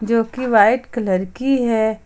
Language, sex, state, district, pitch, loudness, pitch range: Hindi, female, Jharkhand, Ranchi, 230 Hz, -17 LUFS, 215-250 Hz